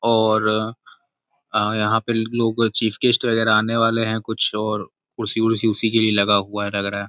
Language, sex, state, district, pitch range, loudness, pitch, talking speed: Hindi, male, Uttar Pradesh, Gorakhpur, 105-115 Hz, -19 LUFS, 110 Hz, 205 wpm